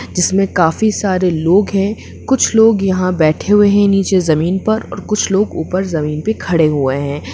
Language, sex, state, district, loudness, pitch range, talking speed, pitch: Hindi, female, Jharkhand, Sahebganj, -14 LUFS, 165-205 Hz, 195 wpm, 190 Hz